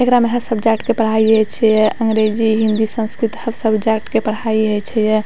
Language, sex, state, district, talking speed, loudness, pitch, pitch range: Maithili, female, Bihar, Madhepura, 215 wpm, -16 LUFS, 220 Hz, 215-230 Hz